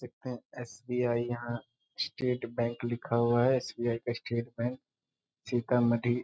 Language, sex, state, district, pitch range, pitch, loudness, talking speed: Hindi, male, Bihar, Sitamarhi, 120-125 Hz, 120 Hz, -32 LUFS, 145 wpm